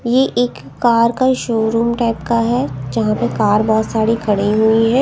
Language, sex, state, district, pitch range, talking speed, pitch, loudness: Hindi, female, Punjab, Kapurthala, 210-235 Hz, 190 wpm, 225 Hz, -16 LUFS